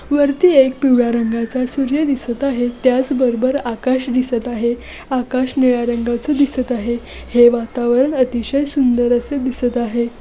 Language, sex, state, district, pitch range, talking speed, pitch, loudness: Marathi, female, Maharashtra, Nagpur, 240-270 Hz, 135 wpm, 250 Hz, -16 LUFS